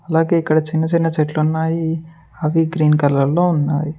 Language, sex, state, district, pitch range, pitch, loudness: Telugu, male, Telangana, Mahabubabad, 155-165 Hz, 160 Hz, -17 LUFS